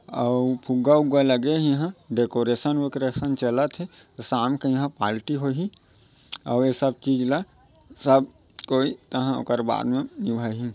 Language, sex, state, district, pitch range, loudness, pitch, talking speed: Chhattisgarhi, male, Chhattisgarh, Raigarh, 120-145 Hz, -24 LUFS, 130 Hz, 145 wpm